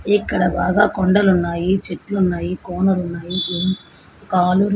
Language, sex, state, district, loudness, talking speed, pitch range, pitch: Telugu, female, Andhra Pradesh, Srikakulam, -19 LUFS, 115 wpm, 175-195 Hz, 185 Hz